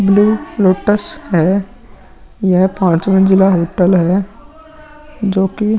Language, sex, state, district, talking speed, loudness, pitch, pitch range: Hindi, male, Bihar, Vaishali, 115 wpm, -13 LUFS, 195 Hz, 190-220 Hz